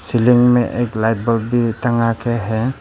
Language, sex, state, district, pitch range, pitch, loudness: Hindi, male, Arunachal Pradesh, Papum Pare, 115-120 Hz, 115 Hz, -16 LUFS